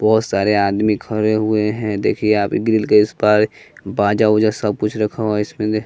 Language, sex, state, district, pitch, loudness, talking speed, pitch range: Hindi, male, Bihar, West Champaran, 105 Hz, -17 LUFS, 215 wpm, 105-110 Hz